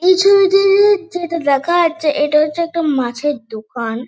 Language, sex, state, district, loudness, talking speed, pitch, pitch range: Bengali, female, West Bengal, Kolkata, -14 LUFS, 160 wpm, 325 Hz, 275-365 Hz